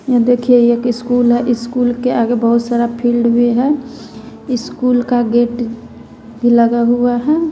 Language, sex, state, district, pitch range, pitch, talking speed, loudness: Hindi, female, Bihar, West Champaran, 235-245 Hz, 240 Hz, 160 wpm, -14 LUFS